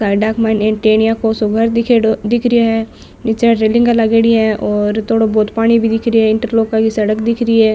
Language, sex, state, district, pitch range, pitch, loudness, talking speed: Marwari, female, Rajasthan, Nagaur, 220-230 Hz, 225 Hz, -13 LUFS, 210 wpm